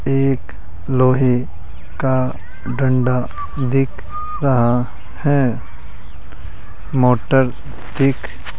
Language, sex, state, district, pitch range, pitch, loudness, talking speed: Hindi, male, Rajasthan, Jaipur, 90-130 Hz, 125 Hz, -18 LUFS, 70 wpm